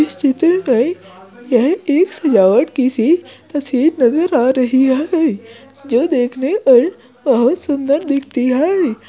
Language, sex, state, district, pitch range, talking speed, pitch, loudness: Hindi, female, Uttar Pradesh, Jyotiba Phule Nagar, 245-315 Hz, 125 wpm, 275 Hz, -15 LUFS